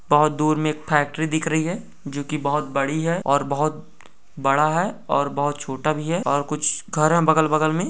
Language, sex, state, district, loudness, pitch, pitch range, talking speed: Hindi, male, Chhattisgarh, Sukma, -21 LUFS, 155 Hz, 145-160 Hz, 220 wpm